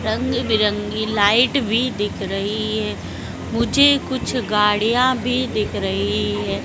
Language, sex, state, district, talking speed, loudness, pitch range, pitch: Hindi, female, Madhya Pradesh, Dhar, 125 wpm, -19 LUFS, 205-250 Hz, 215 Hz